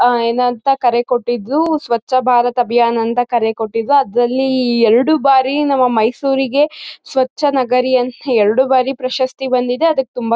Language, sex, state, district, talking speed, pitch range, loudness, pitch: Kannada, female, Karnataka, Mysore, 135 wpm, 240-270 Hz, -15 LUFS, 250 Hz